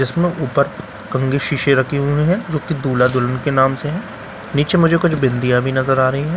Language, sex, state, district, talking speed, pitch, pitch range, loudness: Hindi, male, Bihar, Katihar, 225 wpm, 140 Hz, 130-155 Hz, -17 LUFS